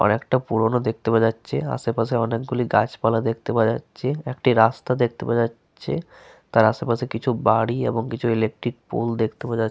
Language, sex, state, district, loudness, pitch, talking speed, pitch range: Bengali, male, Jharkhand, Sahebganj, -22 LUFS, 115 Hz, 175 wpm, 115-120 Hz